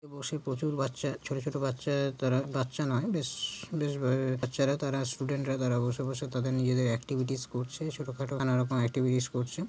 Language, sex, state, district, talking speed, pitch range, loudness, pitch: Bengali, male, West Bengal, Jalpaiguri, 165 wpm, 125-140 Hz, -32 LUFS, 135 Hz